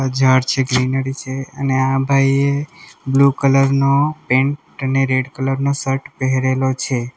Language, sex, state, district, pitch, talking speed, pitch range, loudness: Gujarati, male, Gujarat, Valsad, 135 Hz, 160 wpm, 130-140 Hz, -17 LUFS